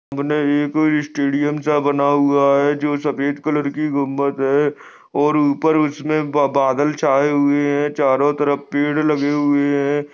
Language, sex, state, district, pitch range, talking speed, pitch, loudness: Hindi, male, Maharashtra, Nagpur, 140-150 Hz, 150 wpm, 145 Hz, -18 LUFS